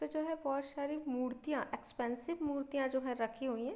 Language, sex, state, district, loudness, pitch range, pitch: Hindi, female, Bihar, Gopalganj, -39 LUFS, 250-290 Hz, 275 Hz